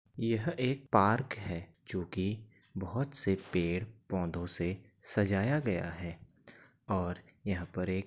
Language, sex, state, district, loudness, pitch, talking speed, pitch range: Hindi, male, Uttar Pradesh, Gorakhpur, -34 LUFS, 95 Hz, 135 wpm, 90-115 Hz